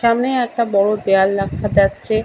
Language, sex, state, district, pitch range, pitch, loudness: Bengali, male, West Bengal, Kolkata, 195-235 Hz, 210 Hz, -17 LUFS